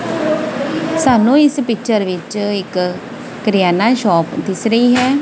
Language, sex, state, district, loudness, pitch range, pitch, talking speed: Punjabi, female, Punjab, Kapurthala, -15 LUFS, 195-275 Hz, 230 Hz, 115 wpm